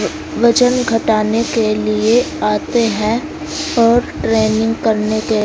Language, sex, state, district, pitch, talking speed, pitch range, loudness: Hindi, female, Haryana, Jhajjar, 225 Hz, 110 wpm, 215-240 Hz, -15 LUFS